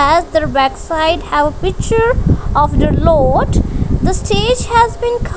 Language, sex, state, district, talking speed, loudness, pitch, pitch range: English, female, Punjab, Kapurthala, 155 wpm, -14 LUFS, 335 Hz, 315-470 Hz